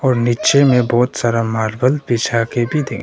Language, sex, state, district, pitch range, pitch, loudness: Hindi, male, Arunachal Pradesh, Longding, 115-130 Hz, 120 Hz, -16 LUFS